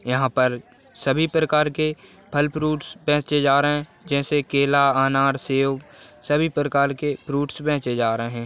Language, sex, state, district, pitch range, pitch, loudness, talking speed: Hindi, male, Chhattisgarh, Raigarh, 135-150 Hz, 145 Hz, -21 LUFS, 165 wpm